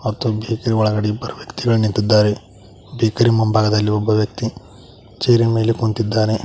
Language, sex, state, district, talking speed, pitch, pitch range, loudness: Kannada, male, Karnataka, Koppal, 130 wpm, 110 Hz, 105-115 Hz, -18 LUFS